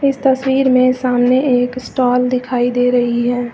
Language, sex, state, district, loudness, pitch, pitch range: Hindi, female, Uttar Pradesh, Lucknow, -15 LUFS, 250 Hz, 245-260 Hz